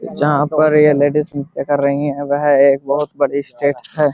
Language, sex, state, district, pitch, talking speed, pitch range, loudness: Hindi, male, Uttar Pradesh, Muzaffarnagar, 145 Hz, 205 wpm, 140-150 Hz, -15 LUFS